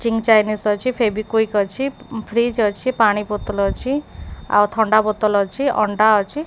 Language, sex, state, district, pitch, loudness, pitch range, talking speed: Odia, female, Odisha, Khordha, 215 Hz, -18 LUFS, 210-235 Hz, 150 wpm